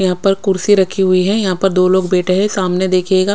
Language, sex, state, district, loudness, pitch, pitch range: Hindi, female, Odisha, Khordha, -14 LUFS, 185 Hz, 185-195 Hz